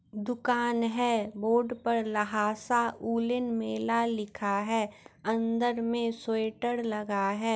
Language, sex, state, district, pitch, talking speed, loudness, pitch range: Hindi, female, Bihar, Muzaffarpur, 230 Hz, 110 wpm, -30 LUFS, 210-235 Hz